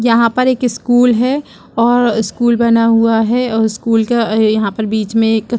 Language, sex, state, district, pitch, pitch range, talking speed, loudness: Hindi, female, Chhattisgarh, Bastar, 230 Hz, 220-240 Hz, 180 wpm, -13 LUFS